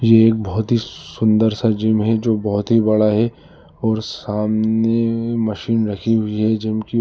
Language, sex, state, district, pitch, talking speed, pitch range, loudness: Hindi, male, Uttar Pradesh, Lalitpur, 110 Hz, 190 wpm, 110-115 Hz, -18 LUFS